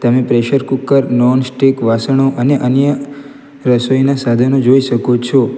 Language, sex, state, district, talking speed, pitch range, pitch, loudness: Gujarati, male, Gujarat, Valsad, 130 wpm, 125-135 Hz, 130 Hz, -13 LUFS